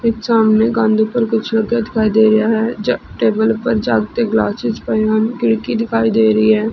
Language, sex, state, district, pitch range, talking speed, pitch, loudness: Punjabi, female, Punjab, Fazilka, 215-230 Hz, 215 wpm, 220 Hz, -15 LUFS